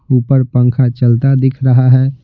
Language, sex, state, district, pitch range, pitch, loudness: Hindi, male, Bihar, Patna, 125-135 Hz, 130 Hz, -11 LUFS